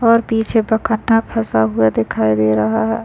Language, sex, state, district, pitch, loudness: Hindi, male, Bihar, Muzaffarpur, 220 Hz, -16 LUFS